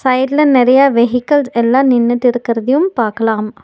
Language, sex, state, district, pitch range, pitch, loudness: Tamil, female, Tamil Nadu, Nilgiris, 235-270 Hz, 250 Hz, -12 LUFS